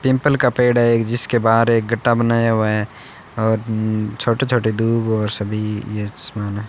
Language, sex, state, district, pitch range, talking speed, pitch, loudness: Hindi, male, Rajasthan, Bikaner, 105-120 Hz, 160 wpm, 115 Hz, -18 LUFS